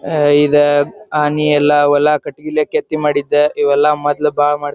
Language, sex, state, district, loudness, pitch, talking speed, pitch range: Kannada, male, Karnataka, Dharwad, -14 LUFS, 150 Hz, 165 wpm, 145-150 Hz